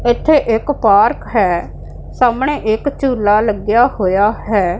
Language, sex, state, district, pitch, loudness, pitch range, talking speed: Punjabi, female, Punjab, Pathankot, 225 Hz, -14 LUFS, 210-270 Hz, 125 wpm